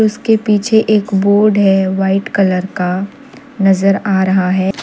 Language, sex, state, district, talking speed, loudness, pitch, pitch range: Hindi, female, Jharkhand, Deoghar, 150 wpm, -13 LUFS, 195 Hz, 190-210 Hz